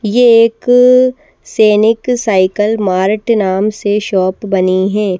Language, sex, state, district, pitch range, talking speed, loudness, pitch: Hindi, female, Madhya Pradesh, Bhopal, 195-230 Hz, 125 wpm, -11 LUFS, 210 Hz